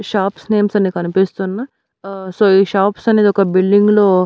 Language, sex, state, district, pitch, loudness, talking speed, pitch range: Telugu, female, Andhra Pradesh, Annamaya, 195 Hz, -14 LUFS, 170 wpm, 190-210 Hz